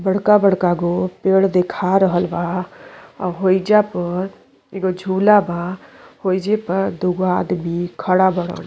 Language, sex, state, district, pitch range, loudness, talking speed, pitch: Bhojpuri, female, Uttar Pradesh, Deoria, 180-195 Hz, -18 LUFS, 130 wpm, 185 Hz